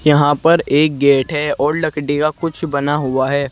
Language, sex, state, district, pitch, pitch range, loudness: Hindi, male, Uttar Pradesh, Saharanpur, 145 Hz, 140-155 Hz, -16 LUFS